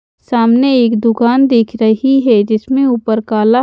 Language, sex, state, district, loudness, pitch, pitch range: Hindi, female, Haryana, Charkhi Dadri, -12 LUFS, 235 Hz, 225-255 Hz